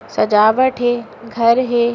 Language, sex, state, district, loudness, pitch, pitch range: Hindi, female, Uttar Pradesh, Gorakhpur, -15 LUFS, 235 Hz, 230-240 Hz